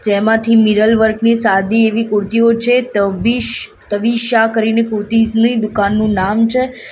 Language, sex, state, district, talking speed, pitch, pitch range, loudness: Gujarati, female, Gujarat, Gandhinagar, 130 wpm, 225 Hz, 215-230 Hz, -13 LUFS